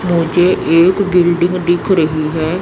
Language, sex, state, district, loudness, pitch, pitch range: Hindi, female, Chandigarh, Chandigarh, -13 LUFS, 175 Hz, 165-180 Hz